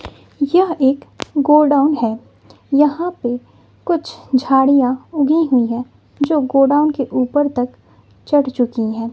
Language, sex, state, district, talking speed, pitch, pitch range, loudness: Hindi, female, Bihar, West Champaran, 125 wpm, 275 Hz, 250-295 Hz, -16 LUFS